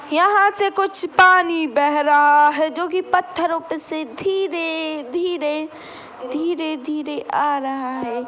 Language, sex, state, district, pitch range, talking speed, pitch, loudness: Hindi, female, Chhattisgarh, Sukma, 295-360 Hz, 115 wpm, 320 Hz, -19 LUFS